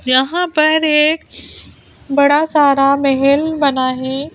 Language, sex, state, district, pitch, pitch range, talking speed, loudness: Hindi, female, Madhya Pradesh, Bhopal, 285 Hz, 275-310 Hz, 110 wpm, -14 LUFS